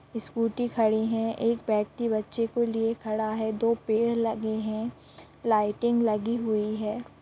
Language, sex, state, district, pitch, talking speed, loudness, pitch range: Hindi, female, Chhattisgarh, Rajnandgaon, 225 Hz, 150 wpm, -28 LUFS, 215-230 Hz